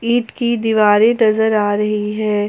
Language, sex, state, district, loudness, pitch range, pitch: Hindi, female, Jharkhand, Ranchi, -15 LUFS, 210-230 Hz, 215 Hz